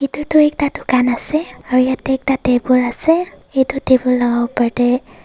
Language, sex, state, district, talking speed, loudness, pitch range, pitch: Nagamese, female, Nagaland, Dimapur, 170 wpm, -16 LUFS, 250-285 Hz, 260 Hz